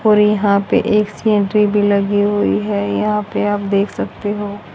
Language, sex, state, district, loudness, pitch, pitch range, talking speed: Hindi, female, Haryana, Rohtak, -16 LUFS, 205 Hz, 200-210 Hz, 175 wpm